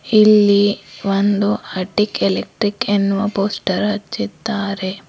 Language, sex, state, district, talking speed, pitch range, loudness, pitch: Kannada, female, Karnataka, Bidar, 80 wpm, 195-210 Hz, -17 LUFS, 205 Hz